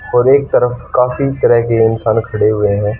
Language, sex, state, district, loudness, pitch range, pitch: Hindi, female, Haryana, Charkhi Dadri, -13 LUFS, 110-125 Hz, 115 Hz